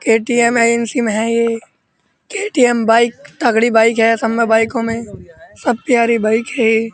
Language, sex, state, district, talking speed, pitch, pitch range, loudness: Hindi, male, Uttar Pradesh, Muzaffarnagar, 155 wpm, 230 Hz, 225-240 Hz, -14 LUFS